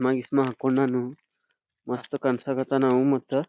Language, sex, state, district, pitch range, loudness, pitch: Kannada, male, Karnataka, Belgaum, 125-135 Hz, -25 LUFS, 130 Hz